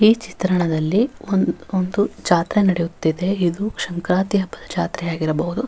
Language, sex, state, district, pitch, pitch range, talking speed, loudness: Kannada, female, Karnataka, Raichur, 185 Hz, 170-200 Hz, 115 wpm, -20 LUFS